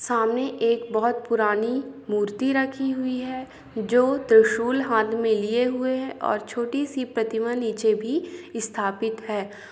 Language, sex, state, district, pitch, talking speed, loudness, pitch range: Hindi, female, Chhattisgarh, Balrampur, 235 Hz, 140 wpm, -24 LUFS, 220-260 Hz